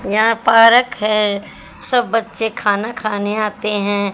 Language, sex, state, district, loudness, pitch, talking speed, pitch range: Hindi, female, Haryana, Jhajjar, -16 LUFS, 215 Hz, 130 wpm, 205-225 Hz